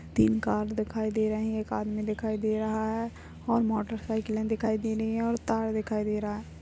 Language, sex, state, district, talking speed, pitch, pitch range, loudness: Hindi, female, Bihar, Madhepura, 225 wpm, 220 Hz, 215-220 Hz, -30 LUFS